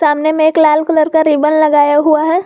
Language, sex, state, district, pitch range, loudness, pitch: Hindi, female, Jharkhand, Garhwa, 300-315 Hz, -11 LUFS, 310 Hz